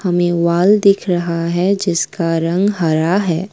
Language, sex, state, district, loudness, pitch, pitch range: Hindi, female, Assam, Kamrup Metropolitan, -15 LUFS, 175 Hz, 170-195 Hz